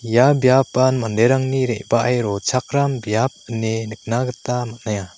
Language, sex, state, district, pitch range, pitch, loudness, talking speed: Garo, male, Meghalaya, South Garo Hills, 110-130 Hz, 120 Hz, -19 LUFS, 115 wpm